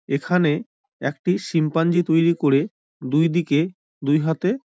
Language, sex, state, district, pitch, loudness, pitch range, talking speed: Bengali, male, West Bengal, Dakshin Dinajpur, 165 Hz, -21 LUFS, 150-180 Hz, 115 wpm